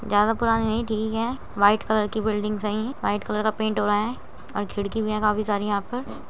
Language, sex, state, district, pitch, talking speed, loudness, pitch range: Hindi, female, Uttar Pradesh, Muzaffarnagar, 215 Hz, 255 wpm, -24 LUFS, 210-220 Hz